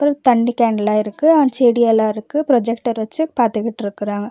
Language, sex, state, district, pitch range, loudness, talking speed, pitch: Tamil, female, Karnataka, Bangalore, 215-255 Hz, -17 LUFS, 155 wpm, 235 Hz